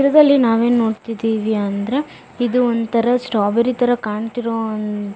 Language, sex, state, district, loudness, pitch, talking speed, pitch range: Kannada, female, Karnataka, Bellary, -18 LUFS, 230 Hz, 140 wpm, 215-245 Hz